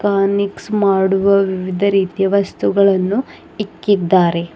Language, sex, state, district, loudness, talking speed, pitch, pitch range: Kannada, female, Karnataka, Bidar, -15 LUFS, 80 wpm, 195 Hz, 190-200 Hz